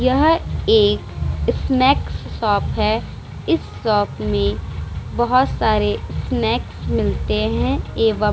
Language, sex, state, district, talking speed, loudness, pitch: Hindi, female, Bihar, Vaishali, 110 wpm, -19 LUFS, 220 Hz